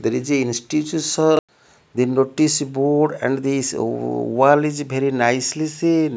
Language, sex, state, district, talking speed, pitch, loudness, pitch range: English, male, Odisha, Malkangiri, 135 wpm, 140 Hz, -19 LUFS, 125-155 Hz